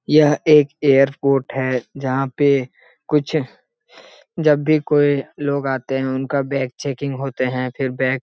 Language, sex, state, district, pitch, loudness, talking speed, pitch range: Hindi, male, Bihar, Jahanabad, 140 Hz, -19 LUFS, 155 wpm, 130-145 Hz